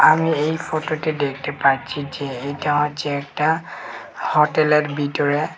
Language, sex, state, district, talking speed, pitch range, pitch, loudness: Bengali, male, Tripura, West Tripura, 120 wpm, 140-155 Hz, 150 Hz, -20 LUFS